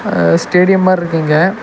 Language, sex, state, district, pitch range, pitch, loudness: Tamil, male, Tamil Nadu, Nilgiris, 155-185 Hz, 180 Hz, -12 LUFS